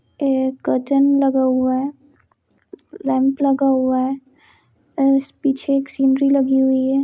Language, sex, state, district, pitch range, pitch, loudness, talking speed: Hindi, female, Jharkhand, Sahebganj, 265-275 Hz, 270 Hz, -18 LUFS, 135 wpm